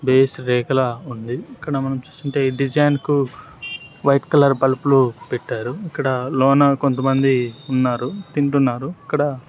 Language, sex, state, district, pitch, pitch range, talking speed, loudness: Telugu, male, Andhra Pradesh, Sri Satya Sai, 135 Hz, 130-145 Hz, 115 wpm, -19 LUFS